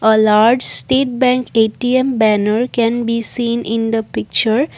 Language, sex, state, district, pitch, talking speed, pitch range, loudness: English, female, Assam, Kamrup Metropolitan, 230 Hz, 150 wpm, 220-250 Hz, -15 LUFS